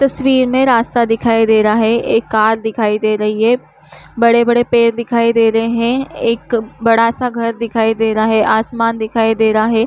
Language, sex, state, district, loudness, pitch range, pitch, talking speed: Hindi, female, Chhattisgarh, Korba, -13 LUFS, 220-235 Hz, 230 Hz, 180 wpm